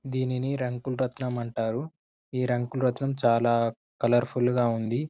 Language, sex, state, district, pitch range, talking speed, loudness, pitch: Telugu, male, Telangana, Karimnagar, 120-130 Hz, 105 wpm, -27 LUFS, 125 Hz